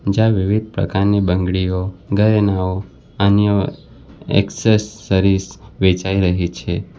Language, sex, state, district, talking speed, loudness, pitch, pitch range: Gujarati, male, Gujarat, Valsad, 85 wpm, -17 LUFS, 95 Hz, 95-105 Hz